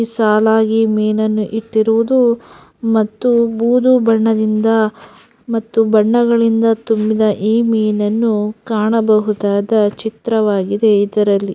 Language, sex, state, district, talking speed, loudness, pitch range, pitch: Kannada, female, Karnataka, Mysore, 75 wpm, -14 LUFS, 215-230 Hz, 220 Hz